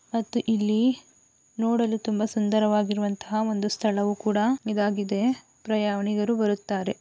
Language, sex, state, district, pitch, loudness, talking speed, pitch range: Kannada, female, Karnataka, Gulbarga, 215 Hz, -25 LUFS, 110 wpm, 205-225 Hz